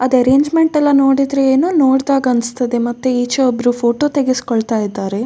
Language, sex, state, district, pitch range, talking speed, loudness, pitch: Kannada, female, Karnataka, Dakshina Kannada, 240-275 Hz, 135 wpm, -14 LUFS, 255 Hz